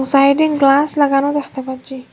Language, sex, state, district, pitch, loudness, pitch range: Bengali, female, Assam, Hailakandi, 275 Hz, -14 LUFS, 265-285 Hz